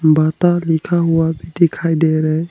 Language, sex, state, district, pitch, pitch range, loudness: Hindi, male, Arunachal Pradesh, Lower Dibang Valley, 165 Hz, 155-170 Hz, -16 LUFS